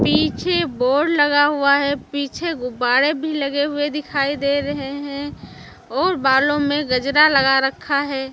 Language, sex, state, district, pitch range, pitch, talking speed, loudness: Hindi, female, Chhattisgarh, Raipur, 275-295 Hz, 285 Hz, 150 wpm, -18 LUFS